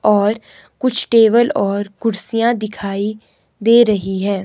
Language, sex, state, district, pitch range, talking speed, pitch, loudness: Hindi, male, Himachal Pradesh, Shimla, 200-230 Hz, 120 wpm, 215 Hz, -16 LUFS